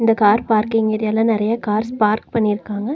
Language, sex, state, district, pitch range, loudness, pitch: Tamil, female, Tamil Nadu, Nilgiris, 210-225 Hz, -18 LUFS, 220 Hz